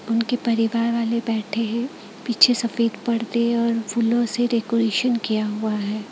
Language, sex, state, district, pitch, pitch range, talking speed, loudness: Hindi, female, Chhattisgarh, Raipur, 230 Hz, 225-235 Hz, 145 wpm, -22 LUFS